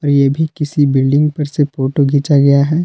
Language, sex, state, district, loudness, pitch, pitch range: Hindi, male, Jharkhand, Palamu, -13 LUFS, 145 Hz, 140-150 Hz